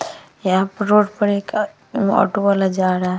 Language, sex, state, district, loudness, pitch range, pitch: Hindi, female, Uttar Pradesh, Hamirpur, -18 LUFS, 190-205 Hz, 200 Hz